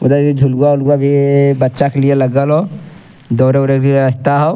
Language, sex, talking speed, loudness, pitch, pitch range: Angika, male, 185 wpm, -12 LUFS, 140 Hz, 135-145 Hz